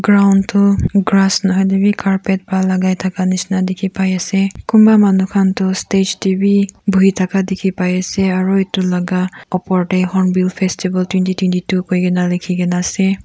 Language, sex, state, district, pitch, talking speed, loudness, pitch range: Nagamese, female, Nagaland, Kohima, 190 Hz, 175 wpm, -15 LUFS, 185-195 Hz